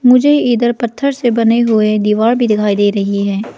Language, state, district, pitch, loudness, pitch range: Hindi, Arunachal Pradesh, Lower Dibang Valley, 230 Hz, -13 LUFS, 210-240 Hz